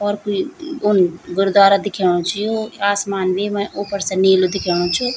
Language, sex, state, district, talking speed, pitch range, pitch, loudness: Garhwali, female, Uttarakhand, Tehri Garhwal, 175 wpm, 190-205 Hz, 200 Hz, -17 LUFS